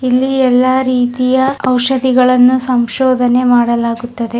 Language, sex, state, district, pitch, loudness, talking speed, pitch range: Kannada, female, Karnataka, Raichur, 255 Hz, -12 LUFS, 80 wpm, 245-260 Hz